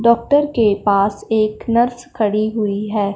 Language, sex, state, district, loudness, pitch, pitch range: Hindi, female, Punjab, Fazilka, -17 LUFS, 215 Hz, 205-235 Hz